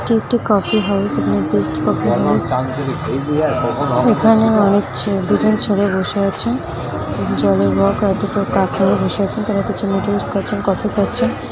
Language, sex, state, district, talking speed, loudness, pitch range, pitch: Bengali, female, West Bengal, North 24 Parganas, 150 wpm, -16 LUFS, 125-205 Hz, 195 Hz